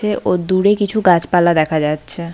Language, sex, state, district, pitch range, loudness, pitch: Bengali, female, West Bengal, Paschim Medinipur, 160-195 Hz, -15 LUFS, 175 Hz